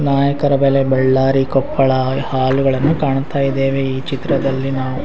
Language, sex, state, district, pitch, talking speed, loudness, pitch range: Kannada, male, Karnataka, Raichur, 135 Hz, 130 wpm, -16 LUFS, 130-140 Hz